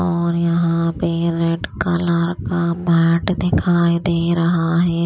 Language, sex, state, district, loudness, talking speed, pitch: Hindi, female, Maharashtra, Washim, -18 LUFS, 130 wpm, 170 Hz